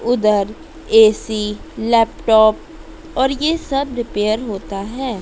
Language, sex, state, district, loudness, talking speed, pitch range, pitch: Hindi, female, Madhya Pradesh, Dhar, -17 LUFS, 105 wpm, 210-260 Hz, 220 Hz